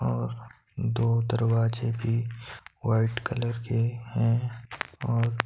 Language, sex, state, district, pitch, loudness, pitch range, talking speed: Hindi, male, Himachal Pradesh, Shimla, 115 Hz, -28 LUFS, 115-120 Hz, 100 wpm